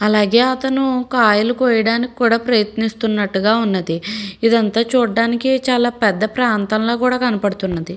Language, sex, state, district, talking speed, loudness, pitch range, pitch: Telugu, female, Andhra Pradesh, Srikakulam, 90 wpm, -16 LUFS, 210-245 Hz, 230 Hz